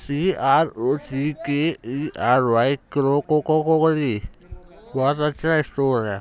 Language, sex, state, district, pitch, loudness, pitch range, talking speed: Hindi, male, Uttar Pradesh, Jyotiba Phule Nagar, 145 Hz, -21 LUFS, 130-155 Hz, 155 wpm